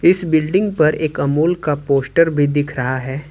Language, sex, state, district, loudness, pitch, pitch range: Hindi, male, Uttar Pradesh, Lucknow, -17 LUFS, 150 Hz, 140-165 Hz